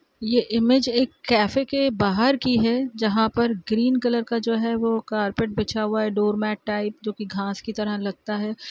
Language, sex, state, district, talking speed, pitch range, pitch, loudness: Hindi, female, Bihar, Araria, 200 wpm, 210-235 Hz, 225 Hz, -23 LUFS